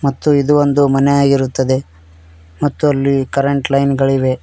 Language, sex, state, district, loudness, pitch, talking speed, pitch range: Kannada, male, Karnataka, Koppal, -14 LUFS, 140 Hz, 135 wpm, 130-140 Hz